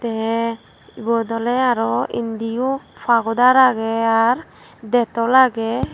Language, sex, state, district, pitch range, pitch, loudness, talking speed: Chakma, female, Tripura, Dhalai, 225-245 Hz, 230 Hz, -18 LUFS, 100 wpm